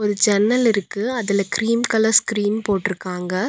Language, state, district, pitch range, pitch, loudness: Tamil, Tamil Nadu, Nilgiris, 200-225 Hz, 210 Hz, -19 LUFS